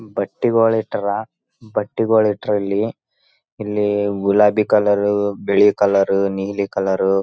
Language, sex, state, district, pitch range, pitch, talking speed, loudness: Kannada, male, Karnataka, Raichur, 100-105 Hz, 100 Hz, 110 wpm, -18 LUFS